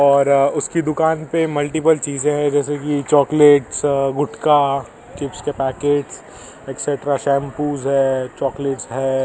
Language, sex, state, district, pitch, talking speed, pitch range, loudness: Hindi, male, Maharashtra, Mumbai Suburban, 140 Hz, 125 wpm, 135-145 Hz, -18 LUFS